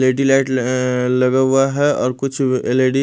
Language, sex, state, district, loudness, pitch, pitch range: Hindi, male, Odisha, Malkangiri, -16 LUFS, 130 Hz, 125-135 Hz